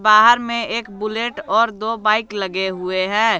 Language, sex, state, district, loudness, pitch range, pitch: Hindi, male, Jharkhand, Garhwa, -18 LUFS, 205-230 Hz, 215 Hz